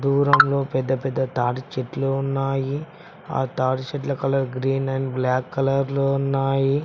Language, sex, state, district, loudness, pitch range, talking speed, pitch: Telugu, male, Telangana, Mahabubabad, -22 LUFS, 130-140 Hz, 140 wpm, 135 Hz